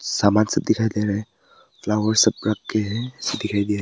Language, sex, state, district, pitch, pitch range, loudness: Hindi, male, Arunachal Pradesh, Papum Pare, 105 Hz, 105-110 Hz, -21 LUFS